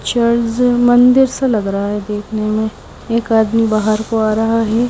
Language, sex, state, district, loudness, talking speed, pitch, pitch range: Hindi, female, Haryana, Charkhi Dadri, -14 LUFS, 185 wpm, 225 Hz, 215-240 Hz